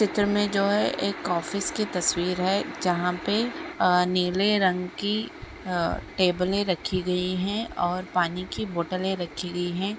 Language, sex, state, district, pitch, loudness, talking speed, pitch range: Hindi, male, Bihar, Bhagalpur, 185 Hz, -26 LUFS, 155 wpm, 180-200 Hz